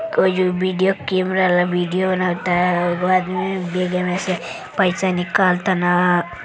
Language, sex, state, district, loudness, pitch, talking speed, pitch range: Bhojpuri, female, Uttar Pradesh, Deoria, -19 LUFS, 180 Hz, 140 wpm, 180-185 Hz